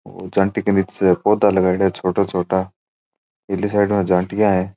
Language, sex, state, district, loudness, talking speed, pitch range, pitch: Rajasthani, male, Rajasthan, Churu, -18 LUFS, 165 wpm, 95-100 Hz, 95 Hz